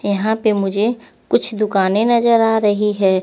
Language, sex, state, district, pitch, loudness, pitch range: Hindi, female, Chandigarh, Chandigarh, 215 Hz, -16 LUFS, 200-225 Hz